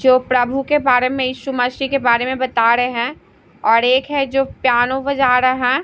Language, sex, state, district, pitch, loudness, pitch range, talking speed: Hindi, female, Bihar, Patna, 255 Hz, -16 LUFS, 245-270 Hz, 215 wpm